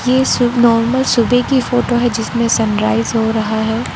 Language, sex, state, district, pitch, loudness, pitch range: Hindi, female, Arunachal Pradesh, Lower Dibang Valley, 235 Hz, -14 LUFS, 225-245 Hz